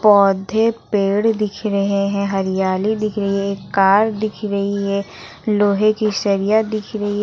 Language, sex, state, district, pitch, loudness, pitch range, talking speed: Hindi, female, Uttar Pradesh, Lucknow, 205 Hz, -18 LUFS, 200-215 Hz, 160 wpm